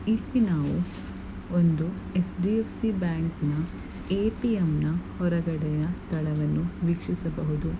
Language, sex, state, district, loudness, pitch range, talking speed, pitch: Kannada, female, Karnataka, Gulbarga, -28 LUFS, 155-180 Hz, 75 wpm, 170 Hz